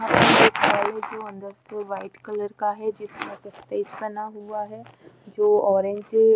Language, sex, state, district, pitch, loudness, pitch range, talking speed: Hindi, female, Odisha, Sambalpur, 210 Hz, -22 LUFS, 205-220 Hz, 205 wpm